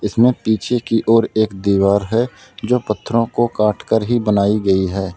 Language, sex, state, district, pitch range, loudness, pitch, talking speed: Hindi, male, Uttar Pradesh, Lalitpur, 100-115 Hz, -17 LUFS, 110 Hz, 185 wpm